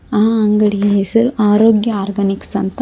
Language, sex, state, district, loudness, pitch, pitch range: Kannada, female, Karnataka, Koppal, -14 LUFS, 210 Hz, 200-225 Hz